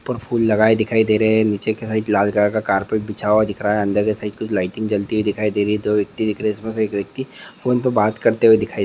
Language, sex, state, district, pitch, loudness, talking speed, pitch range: Hindi, male, Andhra Pradesh, Visakhapatnam, 110 Hz, -19 LUFS, 120 wpm, 105-110 Hz